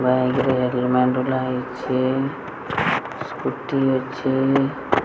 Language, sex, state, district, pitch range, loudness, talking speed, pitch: Odia, female, Odisha, Sambalpur, 125-135 Hz, -22 LUFS, 60 wpm, 130 Hz